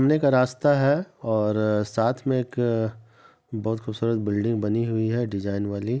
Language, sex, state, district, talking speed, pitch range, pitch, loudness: Hindi, male, Bihar, Samastipur, 170 wpm, 110-125 Hz, 115 Hz, -24 LUFS